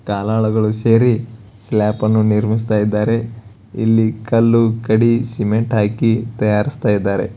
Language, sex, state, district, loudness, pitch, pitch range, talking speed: Kannada, male, Karnataka, Bellary, -16 LUFS, 110 Hz, 105-115 Hz, 105 wpm